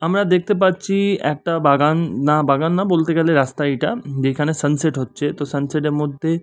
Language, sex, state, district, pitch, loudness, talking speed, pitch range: Bengali, male, West Bengal, Dakshin Dinajpur, 150 Hz, -18 LUFS, 175 wpm, 145-165 Hz